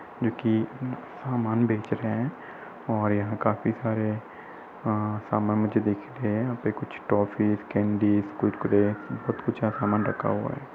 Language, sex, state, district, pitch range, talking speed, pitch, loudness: Hindi, male, Uttar Pradesh, Budaun, 105-115 Hz, 140 wpm, 110 Hz, -27 LUFS